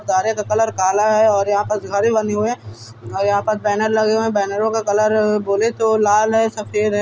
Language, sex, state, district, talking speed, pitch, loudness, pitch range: Hindi, male, Bihar, Araria, 240 wpm, 210 Hz, -17 LUFS, 205-220 Hz